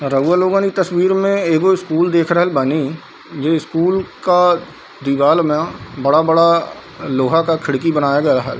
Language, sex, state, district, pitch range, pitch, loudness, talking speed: Hindi, male, Bihar, Darbhanga, 145-180 Hz, 165 Hz, -15 LUFS, 155 wpm